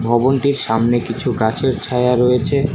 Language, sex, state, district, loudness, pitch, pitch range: Bengali, male, West Bengal, Alipurduar, -17 LUFS, 125 Hz, 115-135 Hz